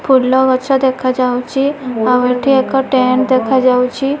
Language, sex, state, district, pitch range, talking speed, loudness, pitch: Odia, female, Odisha, Malkangiri, 250-265 Hz, 100 wpm, -13 LUFS, 260 Hz